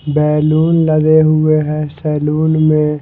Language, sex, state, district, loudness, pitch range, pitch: Hindi, male, Punjab, Fazilka, -13 LUFS, 150-155 Hz, 155 Hz